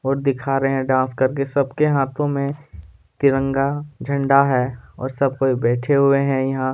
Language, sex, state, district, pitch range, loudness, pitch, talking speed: Hindi, male, Chhattisgarh, Kabirdham, 130-140 Hz, -20 LUFS, 135 Hz, 170 wpm